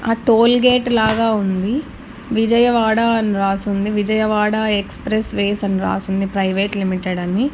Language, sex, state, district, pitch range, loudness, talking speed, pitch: Telugu, female, Andhra Pradesh, Annamaya, 195-230 Hz, -17 LUFS, 120 wpm, 215 Hz